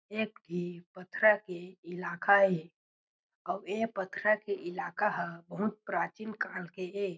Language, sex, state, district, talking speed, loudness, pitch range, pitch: Chhattisgarhi, male, Chhattisgarh, Jashpur, 140 wpm, -32 LUFS, 175-210 Hz, 190 Hz